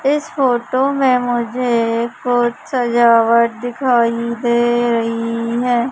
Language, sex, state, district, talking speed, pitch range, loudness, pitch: Hindi, female, Madhya Pradesh, Umaria, 110 wpm, 235-250 Hz, -16 LUFS, 240 Hz